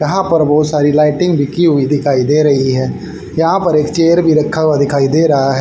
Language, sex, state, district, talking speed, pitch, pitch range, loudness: Hindi, male, Haryana, Rohtak, 245 wpm, 150 Hz, 140-160 Hz, -12 LUFS